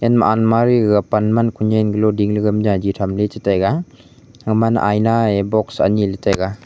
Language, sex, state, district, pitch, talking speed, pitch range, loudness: Wancho, male, Arunachal Pradesh, Longding, 105 Hz, 180 wpm, 100-115 Hz, -16 LUFS